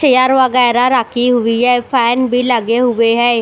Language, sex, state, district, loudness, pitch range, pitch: Hindi, female, Bihar, Katihar, -12 LUFS, 235-255 Hz, 245 Hz